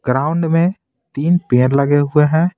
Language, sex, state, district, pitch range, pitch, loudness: Hindi, male, Bihar, Patna, 140-165 Hz, 150 Hz, -15 LUFS